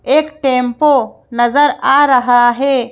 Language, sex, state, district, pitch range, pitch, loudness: Hindi, female, Madhya Pradesh, Bhopal, 245-290 Hz, 265 Hz, -12 LUFS